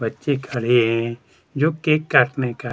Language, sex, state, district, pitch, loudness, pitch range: Hindi, male, Chhattisgarh, Kabirdham, 125 Hz, -20 LUFS, 120-145 Hz